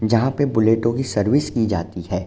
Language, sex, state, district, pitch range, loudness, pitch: Hindi, male, Uttar Pradesh, Jalaun, 100-130 Hz, -20 LUFS, 110 Hz